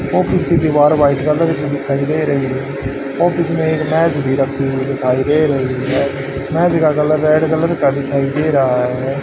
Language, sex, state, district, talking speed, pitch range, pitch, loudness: Hindi, male, Haryana, Charkhi Dadri, 200 wpm, 135-155 Hz, 140 Hz, -15 LUFS